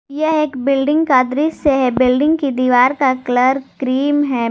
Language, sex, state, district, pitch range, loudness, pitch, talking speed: Hindi, female, Jharkhand, Garhwa, 255-290 Hz, -15 LUFS, 270 Hz, 175 wpm